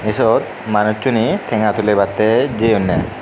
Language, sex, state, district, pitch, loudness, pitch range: Chakma, male, Tripura, Unakoti, 110 Hz, -16 LUFS, 105-115 Hz